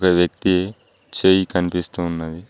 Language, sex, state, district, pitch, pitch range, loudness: Telugu, male, Telangana, Mahabubabad, 90 Hz, 85-95 Hz, -20 LUFS